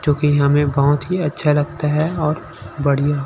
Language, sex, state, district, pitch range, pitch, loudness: Hindi, male, Chhattisgarh, Sukma, 145-155 Hz, 145 Hz, -18 LUFS